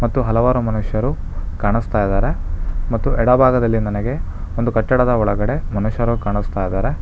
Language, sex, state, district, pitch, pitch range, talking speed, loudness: Kannada, male, Karnataka, Bangalore, 110 Hz, 95-120 Hz, 105 wpm, -19 LUFS